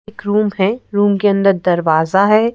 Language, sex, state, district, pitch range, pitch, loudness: Hindi, female, Madhya Pradesh, Bhopal, 190-210 Hz, 205 Hz, -14 LUFS